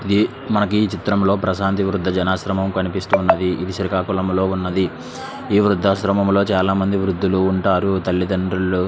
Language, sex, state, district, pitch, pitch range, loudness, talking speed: Telugu, male, Andhra Pradesh, Srikakulam, 95 Hz, 95-100 Hz, -19 LUFS, 130 wpm